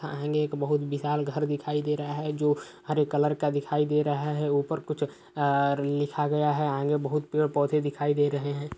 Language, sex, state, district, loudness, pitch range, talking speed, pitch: Hindi, male, Uttar Pradesh, Hamirpur, -27 LUFS, 145-150 Hz, 165 wpm, 145 Hz